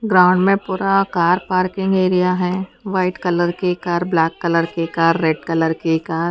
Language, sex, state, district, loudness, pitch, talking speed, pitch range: Hindi, female, Haryana, Charkhi Dadri, -18 LUFS, 180 Hz, 190 wpm, 165-185 Hz